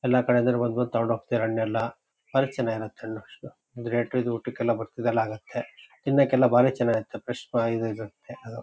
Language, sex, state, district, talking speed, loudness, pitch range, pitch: Kannada, male, Karnataka, Shimoga, 140 wpm, -26 LUFS, 115-125 Hz, 115 Hz